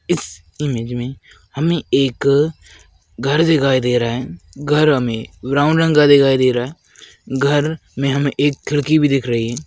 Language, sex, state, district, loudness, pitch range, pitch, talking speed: Hindi, male, Maharashtra, Aurangabad, -16 LUFS, 120-145 Hz, 135 Hz, 175 wpm